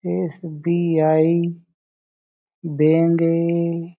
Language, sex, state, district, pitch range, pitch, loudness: Chhattisgarhi, male, Chhattisgarh, Jashpur, 160-170 Hz, 170 Hz, -19 LUFS